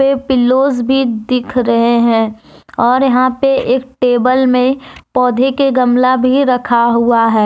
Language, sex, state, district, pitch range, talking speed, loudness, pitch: Hindi, female, Jharkhand, Deoghar, 240-260 Hz, 155 wpm, -12 LUFS, 250 Hz